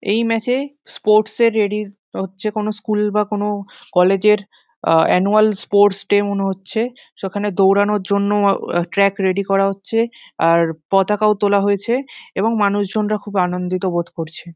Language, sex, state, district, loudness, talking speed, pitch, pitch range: Bengali, male, West Bengal, Dakshin Dinajpur, -18 LUFS, 150 wpm, 205 Hz, 195-215 Hz